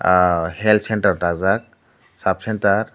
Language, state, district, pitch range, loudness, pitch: Kokborok, Tripura, Dhalai, 90-105 Hz, -19 LUFS, 95 Hz